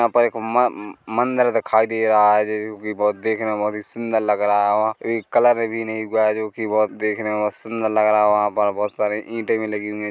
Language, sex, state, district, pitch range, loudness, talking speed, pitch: Hindi, male, Chhattisgarh, Korba, 105-115 Hz, -20 LUFS, 255 wpm, 110 Hz